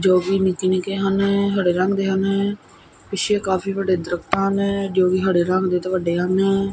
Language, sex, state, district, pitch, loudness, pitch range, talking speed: Punjabi, male, Punjab, Kapurthala, 190 Hz, -20 LUFS, 185-195 Hz, 195 wpm